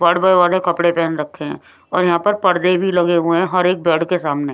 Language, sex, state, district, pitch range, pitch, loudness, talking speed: Hindi, female, Punjab, Pathankot, 170-180 Hz, 175 Hz, -16 LUFS, 250 wpm